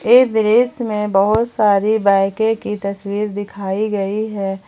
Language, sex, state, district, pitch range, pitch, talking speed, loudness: Hindi, female, Jharkhand, Palamu, 200-220 Hz, 210 Hz, 140 wpm, -17 LUFS